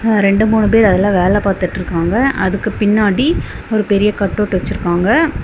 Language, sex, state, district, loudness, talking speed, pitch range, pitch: Tamil, female, Tamil Nadu, Kanyakumari, -14 LUFS, 145 wpm, 190-215 Hz, 205 Hz